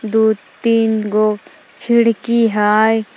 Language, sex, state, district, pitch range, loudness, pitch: Magahi, female, Jharkhand, Palamu, 215-230 Hz, -15 LUFS, 220 Hz